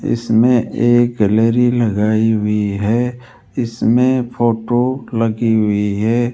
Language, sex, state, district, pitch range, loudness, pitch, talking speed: Hindi, male, Rajasthan, Jaipur, 110-120 Hz, -15 LUFS, 115 Hz, 105 wpm